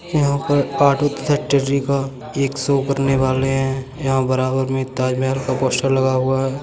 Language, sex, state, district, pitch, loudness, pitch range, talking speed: Hindi, male, Uttar Pradesh, Budaun, 135 Hz, -19 LUFS, 130-140 Hz, 165 wpm